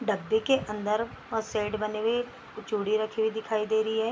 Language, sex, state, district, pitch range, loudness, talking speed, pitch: Hindi, female, Bihar, Bhagalpur, 215-225 Hz, -29 LUFS, 235 wpm, 220 Hz